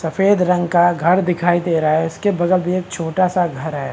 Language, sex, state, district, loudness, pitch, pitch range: Hindi, male, Maharashtra, Chandrapur, -17 LUFS, 175 Hz, 165-185 Hz